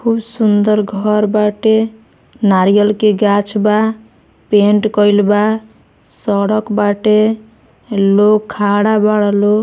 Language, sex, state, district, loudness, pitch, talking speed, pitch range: Bhojpuri, female, Bihar, Muzaffarpur, -13 LUFS, 210 Hz, 105 wpm, 205-215 Hz